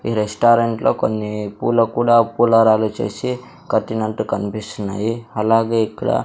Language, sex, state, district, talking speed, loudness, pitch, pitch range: Telugu, male, Andhra Pradesh, Sri Satya Sai, 105 wpm, -18 LUFS, 110 Hz, 105-115 Hz